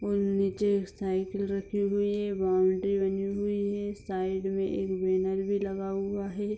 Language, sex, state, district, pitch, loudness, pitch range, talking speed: Hindi, female, Bihar, Madhepura, 195 Hz, -30 LUFS, 190-200 Hz, 175 wpm